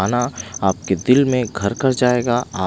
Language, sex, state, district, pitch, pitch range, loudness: Hindi, male, Punjab, Pathankot, 120 Hz, 95-125 Hz, -18 LUFS